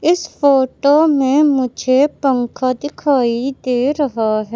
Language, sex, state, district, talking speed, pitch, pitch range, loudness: Hindi, female, Madhya Pradesh, Katni, 120 wpm, 270 Hz, 255-290 Hz, -15 LUFS